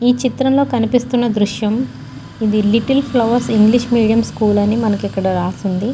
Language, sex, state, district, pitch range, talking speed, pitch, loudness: Telugu, female, Andhra Pradesh, Guntur, 210-245 Hz, 150 wpm, 230 Hz, -15 LUFS